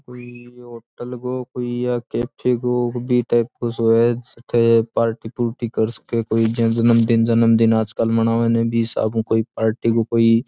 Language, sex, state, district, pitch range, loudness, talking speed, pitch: Rajasthani, male, Rajasthan, Churu, 115-120 Hz, -19 LUFS, 170 wpm, 115 Hz